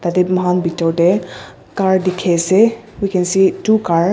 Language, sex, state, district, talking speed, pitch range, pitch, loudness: Nagamese, female, Nagaland, Dimapur, 190 wpm, 175-195 Hz, 185 Hz, -15 LUFS